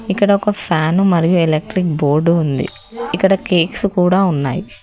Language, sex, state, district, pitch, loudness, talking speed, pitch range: Telugu, female, Telangana, Hyderabad, 180 Hz, -15 LUFS, 135 wpm, 160-195 Hz